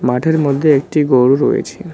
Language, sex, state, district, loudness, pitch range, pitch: Bengali, male, West Bengal, Cooch Behar, -13 LUFS, 135-160 Hz, 145 Hz